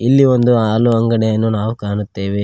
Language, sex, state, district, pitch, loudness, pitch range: Kannada, male, Karnataka, Koppal, 110 Hz, -15 LUFS, 105-120 Hz